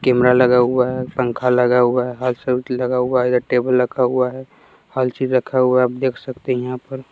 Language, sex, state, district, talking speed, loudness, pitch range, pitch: Hindi, male, Bihar, West Champaran, 225 wpm, -18 LUFS, 125-130 Hz, 125 Hz